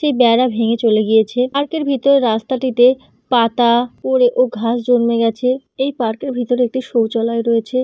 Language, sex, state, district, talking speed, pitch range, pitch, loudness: Bengali, female, West Bengal, North 24 Parganas, 170 wpm, 230-260 Hz, 245 Hz, -16 LUFS